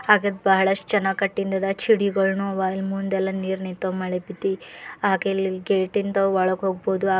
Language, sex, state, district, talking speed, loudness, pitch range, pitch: Kannada, female, Karnataka, Bidar, 175 wpm, -23 LUFS, 190-195 Hz, 195 Hz